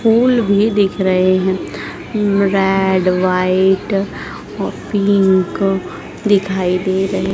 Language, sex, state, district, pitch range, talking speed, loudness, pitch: Hindi, female, Madhya Pradesh, Dhar, 185-200 Hz, 100 wpm, -15 LUFS, 195 Hz